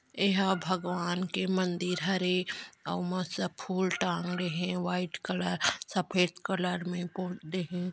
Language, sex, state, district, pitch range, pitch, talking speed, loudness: Chhattisgarhi, female, Chhattisgarh, Bastar, 180-185 Hz, 180 Hz, 135 wpm, -31 LUFS